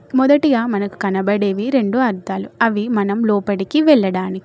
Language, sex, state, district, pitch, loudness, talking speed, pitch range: Telugu, female, Telangana, Mahabubabad, 205 Hz, -17 LUFS, 120 wpm, 200-250 Hz